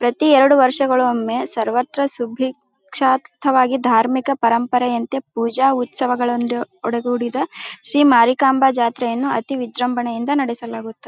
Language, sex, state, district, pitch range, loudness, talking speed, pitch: Kannada, female, Karnataka, Bijapur, 235-270 Hz, -18 LUFS, 90 wpm, 245 Hz